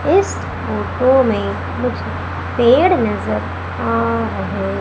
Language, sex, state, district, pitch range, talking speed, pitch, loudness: Hindi, female, Madhya Pradesh, Umaria, 95-115 Hz, 100 wpm, 100 Hz, -17 LUFS